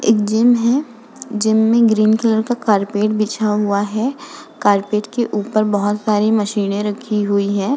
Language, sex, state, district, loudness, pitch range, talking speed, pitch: Hindi, female, Uttar Pradesh, Budaun, -17 LUFS, 205-235 Hz, 160 wpm, 215 Hz